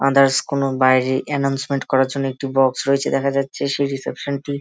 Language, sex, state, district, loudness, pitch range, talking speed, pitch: Bengali, male, West Bengal, Malda, -19 LUFS, 135-140 Hz, 180 wpm, 135 Hz